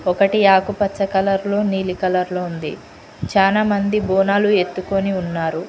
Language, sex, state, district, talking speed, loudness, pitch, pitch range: Telugu, female, Telangana, Mahabubabad, 115 wpm, -18 LUFS, 195 Hz, 180-200 Hz